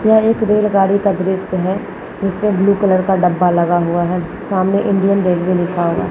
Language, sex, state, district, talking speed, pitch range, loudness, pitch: Hindi, female, Rajasthan, Nagaur, 195 wpm, 180-200 Hz, -15 LUFS, 190 Hz